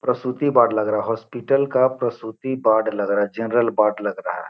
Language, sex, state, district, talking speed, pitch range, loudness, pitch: Hindi, male, Bihar, Gopalganj, 225 wpm, 110-125 Hz, -21 LUFS, 115 Hz